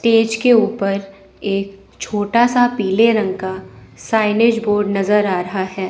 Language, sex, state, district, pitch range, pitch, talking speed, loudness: Hindi, male, Chandigarh, Chandigarh, 195-225 Hz, 205 Hz, 140 wpm, -17 LUFS